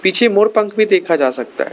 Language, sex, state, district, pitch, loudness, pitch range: Hindi, male, Arunachal Pradesh, Lower Dibang Valley, 205 Hz, -14 LUFS, 165-215 Hz